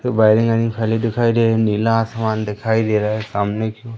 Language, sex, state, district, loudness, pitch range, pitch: Hindi, male, Madhya Pradesh, Umaria, -18 LUFS, 110-115 Hz, 110 Hz